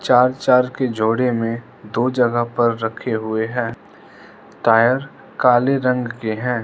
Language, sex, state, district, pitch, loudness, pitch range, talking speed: Hindi, male, Arunachal Pradesh, Lower Dibang Valley, 120 Hz, -18 LUFS, 115-125 Hz, 145 wpm